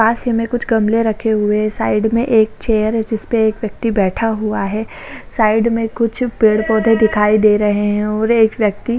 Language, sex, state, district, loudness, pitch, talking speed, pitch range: Hindi, female, Maharashtra, Chandrapur, -15 LUFS, 220 Hz, 205 wpm, 215-225 Hz